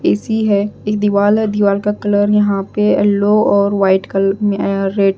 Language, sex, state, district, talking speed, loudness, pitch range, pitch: Hindi, female, Punjab, Pathankot, 195 wpm, -14 LUFS, 195-210 Hz, 205 Hz